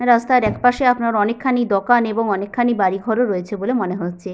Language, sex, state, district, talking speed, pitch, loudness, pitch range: Bengali, female, West Bengal, Paschim Medinipur, 180 wpm, 225 Hz, -18 LUFS, 195-245 Hz